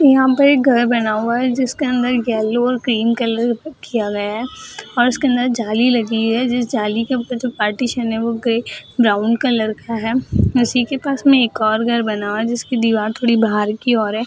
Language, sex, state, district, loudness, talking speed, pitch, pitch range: Hindi, female, Bihar, Jahanabad, -17 LUFS, 210 wpm, 235 Hz, 225-250 Hz